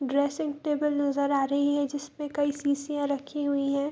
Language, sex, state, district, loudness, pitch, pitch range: Hindi, female, Bihar, Bhagalpur, -28 LUFS, 285 Hz, 280-290 Hz